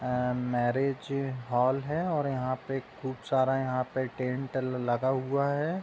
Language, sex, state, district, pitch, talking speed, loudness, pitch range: Hindi, male, Uttar Pradesh, Budaun, 130 Hz, 155 wpm, -30 LUFS, 125-135 Hz